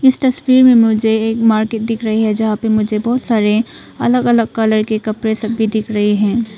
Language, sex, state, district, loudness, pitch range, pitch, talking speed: Hindi, female, Arunachal Pradesh, Papum Pare, -14 LUFS, 215-230 Hz, 220 Hz, 210 wpm